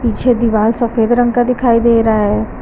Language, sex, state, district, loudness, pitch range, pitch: Hindi, female, Uttar Pradesh, Lucknow, -13 LUFS, 220-245 Hz, 235 Hz